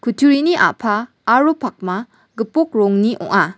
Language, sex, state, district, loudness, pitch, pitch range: Garo, female, Meghalaya, West Garo Hills, -16 LUFS, 230 Hz, 205-265 Hz